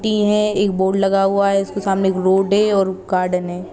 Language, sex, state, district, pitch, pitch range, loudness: Hindi, female, Jharkhand, Sahebganj, 195 Hz, 190-200 Hz, -17 LUFS